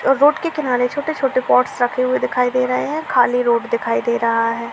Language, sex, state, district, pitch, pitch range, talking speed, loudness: Hindi, female, Uttar Pradesh, Gorakhpur, 250 Hz, 235-270 Hz, 215 wpm, -18 LUFS